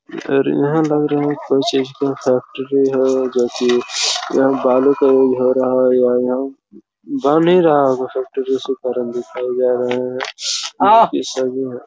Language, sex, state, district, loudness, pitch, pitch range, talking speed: Hindi, male, Chhattisgarh, Raigarh, -16 LUFS, 130 Hz, 125-135 Hz, 175 wpm